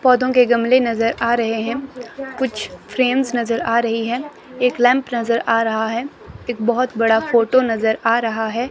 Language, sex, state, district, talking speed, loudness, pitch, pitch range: Hindi, female, Himachal Pradesh, Shimla, 185 wpm, -18 LUFS, 235 Hz, 230-255 Hz